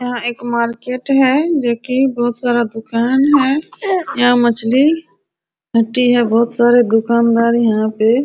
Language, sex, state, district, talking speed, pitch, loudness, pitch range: Hindi, female, Bihar, Araria, 145 wpm, 240 Hz, -14 LUFS, 235-265 Hz